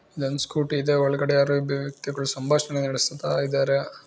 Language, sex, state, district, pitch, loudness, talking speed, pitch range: Kannada, female, Karnataka, Bijapur, 140 Hz, -24 LUFS, 145 wpm, 140-145 Hz